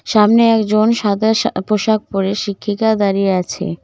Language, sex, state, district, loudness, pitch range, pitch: Bengali, female, West Bengal, Cooch Behar, -15 LUFS, 195-220 Hz, 210 Hz